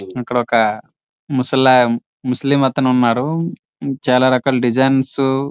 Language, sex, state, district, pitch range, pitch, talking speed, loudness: Telugu, male, Andhra Pradesh, Srikakulam, 125-135 Hz, 130 Hz, 110 wpm, -16 LUFS